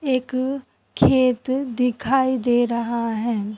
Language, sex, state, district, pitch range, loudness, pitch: Hindi, female, Haryana, Jhajjar, 235-260 Hz, -21 LUFS, 250 Hz